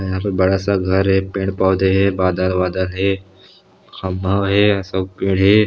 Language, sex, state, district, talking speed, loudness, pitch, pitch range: Chhattisgarhi, male, Chhattisgarh, Sarguja, 180 wpm, -17 LUFS, 95 Hz, 95-100 Hz